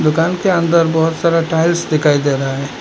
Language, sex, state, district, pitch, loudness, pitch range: Hindi, male, Assam, Hailakandi, 160 Hz, -15 LUFS, 150-170 Hz